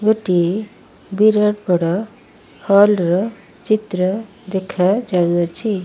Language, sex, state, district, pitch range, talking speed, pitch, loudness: Odia, female, Odisha, Malkangiri, 180-215 Hz, 80 wpm, 200 Hz, -17 LUFS